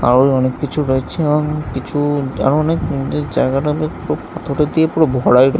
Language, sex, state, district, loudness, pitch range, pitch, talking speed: Bengali, male, West Bengal, Jhargram, -16 LUFS, 130-150 Hz, 145 Hz, 180 wpm